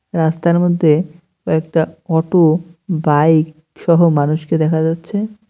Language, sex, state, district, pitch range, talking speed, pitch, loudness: Bengali, male, West Bengal, Cooch Behar, 160-170 Hz, 100 wpm, 165 Hz, -15 LUFS